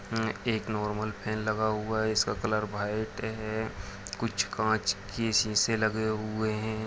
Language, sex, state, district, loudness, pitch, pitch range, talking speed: Hindi, male, Chhattisgarh, Raigarh, -30 LUFS, 110 Hz, 105-110 Hz, 150 wpm